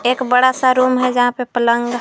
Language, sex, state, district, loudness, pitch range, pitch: Hindi, female, Uttar Pradesh, Lucknow, -15 LUFS, 245-255 Hz, 250 Hz